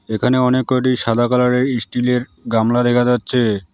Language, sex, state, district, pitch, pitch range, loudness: Bengali, male, West Bengal, Alipurduar, 125 Hz, 115-125 Hz, -16 LUFS